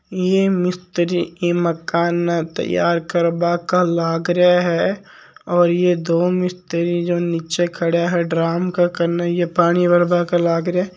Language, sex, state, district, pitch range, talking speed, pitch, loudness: Marwari, male, Rajasthan, Nagaur, 170-180 Hz, 130 wpm, 175 Hz, -18 LUFS